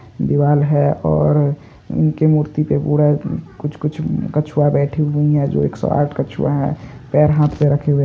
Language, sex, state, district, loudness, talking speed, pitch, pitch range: Hindi, male, Bihar, East Champaran, -17 LUFS, 170 wpm, 145 Hz, 145-150 Hz